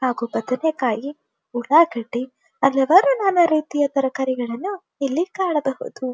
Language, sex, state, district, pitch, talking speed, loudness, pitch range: Kannada, female, Karnataka, Dharwad, 275 Hz, 90 wpm, -20 LUFS, 255-325 Hz